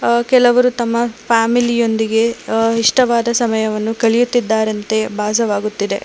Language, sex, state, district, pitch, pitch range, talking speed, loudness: Kannada, female, Karnataka, Bangalore, 230 Hz, 220-235 Hz, 80 wpm, -15 LUFS